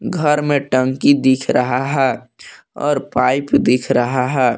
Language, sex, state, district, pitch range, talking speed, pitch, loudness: Hindi, male, Jharkhand, Palamu, 125-140 Hz, 145 wpm, 130 Hz, -16 LUFS